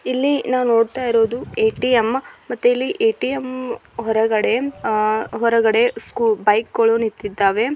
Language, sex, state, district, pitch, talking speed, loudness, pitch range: Kannada, female, Karnataka, Belgaum, 235 Hz, 115 wpm, -19 LUFS, 225-255 Hz